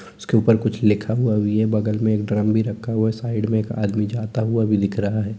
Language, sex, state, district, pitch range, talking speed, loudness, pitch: Hindi, male, Chhattisgarh, Korba, 105-110 Hz, 265 wpm, -21 LUFS, 110 Hz